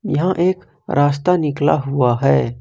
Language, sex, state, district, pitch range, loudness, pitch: Hindi, male, Jharkhand, Ranchi, 125-175 Hz, -17 LUFS, 145 Hz